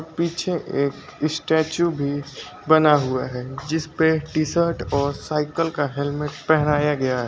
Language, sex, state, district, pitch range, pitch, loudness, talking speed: Hindi, male, Uttar Pradesh, Lucknow, 140-160 Hz, 150 Hz, -22 LUFS, 140 wpm